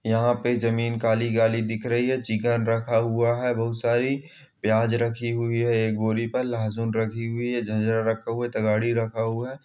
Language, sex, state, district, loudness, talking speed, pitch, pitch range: Hindi, male, Chhattisgarh, Balrampur, -24 LUFS, 205 wpm, 115 Hz, 115-120 Hz